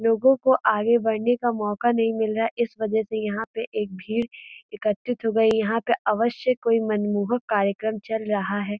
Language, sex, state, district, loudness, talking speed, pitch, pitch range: Hindi, female, Uttar Pradesh, Gorakhpur, -23 LUFS, 205 wpm, 225 Hz, 215-235 Hz